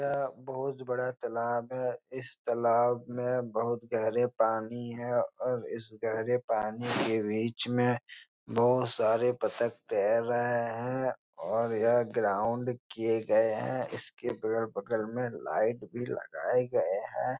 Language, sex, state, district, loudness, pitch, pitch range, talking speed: Hindi, male, Bihar, Jahanabad, -31 LUFS, 120 Hz, 115-125 Hz, 135 wpm